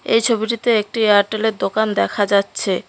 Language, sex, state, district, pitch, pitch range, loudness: Bengali, female, West Bengal, Cooch Behar, 220 Hz, 205-225 Hz, -17 LUFS